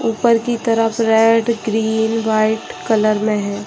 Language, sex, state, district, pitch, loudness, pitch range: Hindi, female, Chhattisgarh, Bilaspur, 225 Hz, -16 LUFS, 215-230 Hz